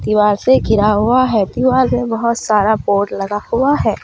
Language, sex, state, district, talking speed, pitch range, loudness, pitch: Hindi, female, Jharkhand, Deoghar, 195 wpm, 210-250 Hz, -14 LUFS, 220 Hz